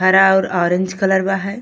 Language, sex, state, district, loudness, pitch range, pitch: Bhojpuri, female, Uttar Pradesh, Gorakhpur, -16 LUFS, 185-195 Hz, 190 Hz